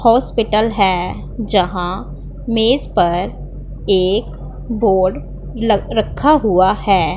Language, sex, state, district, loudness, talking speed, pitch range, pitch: Hindi, female, Punjab, Pathankot, -16 LUFS, 90 wpm, 185-230 Hz, 205 Hz